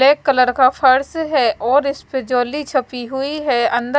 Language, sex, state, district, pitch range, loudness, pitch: Hindi, male, Punjab, Fazilka, 250-280 Hz, -17 LUFS, 265 Hz